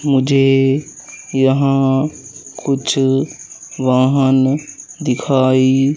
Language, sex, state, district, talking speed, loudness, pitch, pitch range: Hindi, male, Madhya Pradesh, Katni, 50 wpm, -15 LUFS, 135 Hz, 130-140 Hz